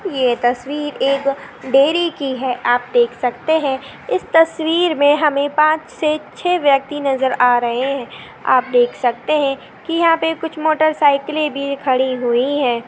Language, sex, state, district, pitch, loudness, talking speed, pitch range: Hindi, female, Maharashtra, Pune, 275 Hz, -17 LUFS, 170 wpm, 255-310 Hz